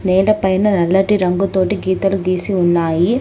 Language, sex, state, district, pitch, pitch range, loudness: Telugu, female, Telangana, Hyderabad, 190 Hz, 180-195 Hz, -15 LUFS